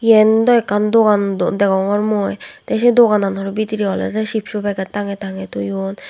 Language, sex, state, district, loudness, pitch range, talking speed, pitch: Chakma, female, Tripura, West Tripura, -16 LUFS, 195-220 Hz, 165 wpm, 205 Hz